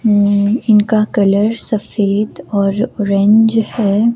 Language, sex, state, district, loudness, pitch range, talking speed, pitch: Hindi, female, Himachal Pradesh, Shimla, -14 LUFS, 200-220 Hz, 100 wpm, 210 Hz